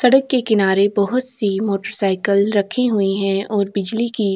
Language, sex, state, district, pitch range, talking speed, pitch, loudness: Hindi, female, Uttar Pradesh, Jyotiba Phule Nagar, 195-230 Hz, 190 wpm, 205 Hz, -17 LUFS